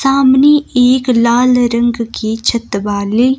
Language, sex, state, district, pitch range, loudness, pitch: Hindi, female, Himachal Pradesh, Shimla, 230-260 Hz, -12 LUFS, 240 Hz